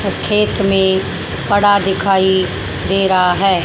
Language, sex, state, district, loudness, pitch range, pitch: Hindi, female, Haryana, Charkhi Dadri, -14 LUFS, 190-200 Hz, 190 Hz